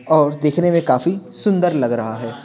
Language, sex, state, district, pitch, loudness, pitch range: Hindi, male, Bihar, Patna, 155 Hz, -18 LUFS, 120-175 Hz